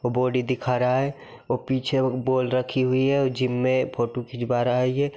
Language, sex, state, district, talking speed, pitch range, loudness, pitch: Magahi, male, Bihar, Gaya, 220 wpm, 125-130 Hz, -24 LUFS, 130 Hz